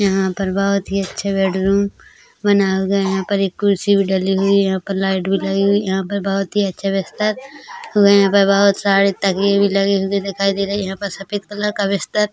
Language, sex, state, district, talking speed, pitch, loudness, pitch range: Hindi, female, Chhattisgarh, Korba, 225 wpm, 195 Hz, -17 LUFS, 195-200 Hz